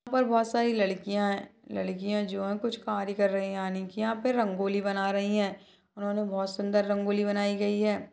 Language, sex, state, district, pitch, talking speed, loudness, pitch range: Hindi, female, Chhattisgarh, Bastar, 205 Hz, 215 wpm, -29 LUFS, 195-210 Hz